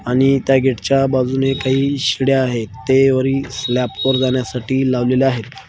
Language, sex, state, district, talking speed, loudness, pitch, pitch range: Marathi, male, Maharashtra, Washim, 150 wpm, -16 LUFS, 130 Hz, 125-135 Hz